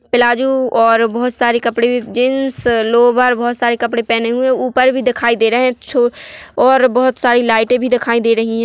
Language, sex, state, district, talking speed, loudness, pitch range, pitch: Hindi, female, Chhattisgarh, Korba, 210 wpm, -13 LUFS, 235-255 Hz, 245 Hz